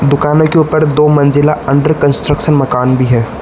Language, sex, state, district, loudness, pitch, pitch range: Hindi, male, Arunachal Pradesh, Lower Dibang Valley, -10 LUFS, 145 Hz, 140-150 Hz